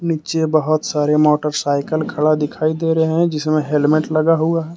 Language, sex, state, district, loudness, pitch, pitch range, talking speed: Hindi, male, Jharkhand, Deoghar, -17 LUFS, 155 Hz, 150-160 Hz, 175 wpm